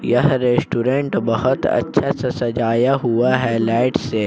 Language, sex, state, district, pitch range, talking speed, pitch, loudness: Hindi, male, Jharkhand, Ranchi, 115-130 Hz, 140 wpm, 125 Hz, -18 LUFS